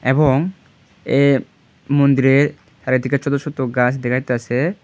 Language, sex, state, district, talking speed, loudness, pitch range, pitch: Bengali, male, Tripura, Dhalai, 110 wpm, -17 LUFS, 130-140 Hz, 135 Hz